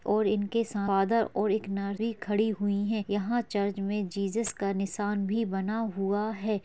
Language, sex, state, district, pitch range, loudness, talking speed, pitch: Hindi, female, Chhattisgarh, Kabirdham, 200-220 Hz, -29 LUFS, 190 wpm, 205 Hz